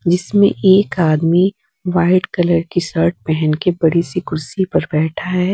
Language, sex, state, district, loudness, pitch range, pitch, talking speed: Hindi, female, Bihar, West Champaran, -16 LUFS, 165-185 Hz, 175 Hz, 160 wpm